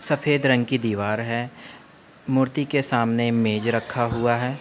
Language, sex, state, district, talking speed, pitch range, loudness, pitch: Hindi, male, Uttar Pradesh, Budaun, 155 wpm, 115-130 Hz, -23 LUFS, 120 Hz